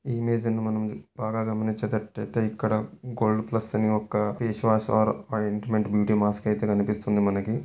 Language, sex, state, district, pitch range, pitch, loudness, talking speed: Telugu, male, Telangana, Karimnagar, 105-110 Hz, 110 Hz, -26 LUFS, 155 wpm